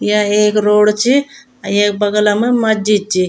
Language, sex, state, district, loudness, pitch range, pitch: Garhwali, female, Uttarakhand, Tehri Garhwal, -13 LUFS, 205-225 Hz, 210 Hz